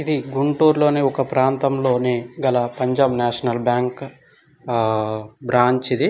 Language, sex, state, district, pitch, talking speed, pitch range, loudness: Telugu, male, Andhra Pradesh, Guntur, 130 Hz, 130 wpm, 120-135 Hz, -19 LUFS